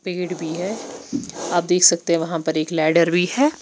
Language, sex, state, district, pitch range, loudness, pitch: Hindi, female, Chandigarh, Chandigarh, 165-180 Hz, -20 LUFS, 175 Hz